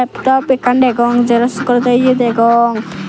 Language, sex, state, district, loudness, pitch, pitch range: Chakma, female, Tripura, Dhalai, -12 LUFS, 245 Hz, 235-255 Hz